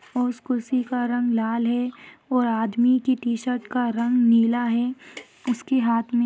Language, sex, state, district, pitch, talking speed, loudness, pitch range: Hindi, female, Maharashtra, Solapur, 245 Hz, 170 wpm, -23 LUFS, 235-250 Hz